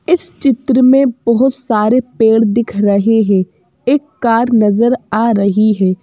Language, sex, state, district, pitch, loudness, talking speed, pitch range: Hindi, female, Madhya Pradesh, Bhopal, 230 Hz, -12 LUFS, 150 wpm, 215-255 Hz